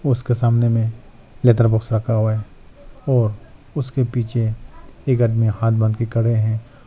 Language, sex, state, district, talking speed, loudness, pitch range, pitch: Hindi, male, Arunachal Pradesh, Lower Dibang Valley, 155 wpm, -19 LUFS, 110-120 Hz, 115 Hz